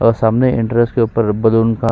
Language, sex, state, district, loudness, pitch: Hindi, female, Chhattisgarh, Sukma, -14 LUFS, 115 Hz